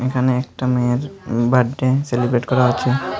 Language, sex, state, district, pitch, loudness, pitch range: Bengali, male, Tripura, Unakoti, 125 Hz, -18 LUFS, 120-130 Hz